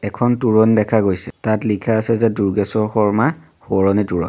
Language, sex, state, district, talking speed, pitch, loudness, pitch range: Assamese, male, Assam, Sonitpur, 170 wpm, 110 Hz, -17 LUFS, 100-115 Hz